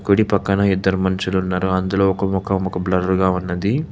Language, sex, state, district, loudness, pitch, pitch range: Telugu, male, Telangana, Hyderabad, -19 LUFS, 95 Hz, 95-100 Hz